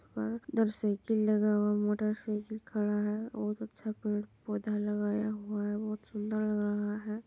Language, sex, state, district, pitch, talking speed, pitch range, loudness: Hindi, female, Bihar, Supaul, 210 Hz, 165 wpm, 210-215 Hz, -33 LUFS